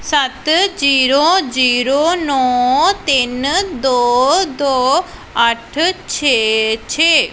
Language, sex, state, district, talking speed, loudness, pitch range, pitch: Punjabi, female, Punjab, Pathankot, 80 wpm, -14 LUFS, 250-330 Hz, 275 Hz